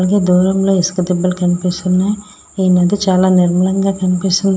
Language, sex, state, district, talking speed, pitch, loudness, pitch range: Telugu, female, Andhra Pradesh, Srikakulam, 145 wpm, 185 Hz, -14 LUFS, 180-195 Hz